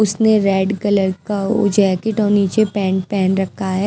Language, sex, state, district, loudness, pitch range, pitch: Hindi, female, Himachal Pradesh, Shimla, -17 LUFS, 190-210 Hz, 200 Hz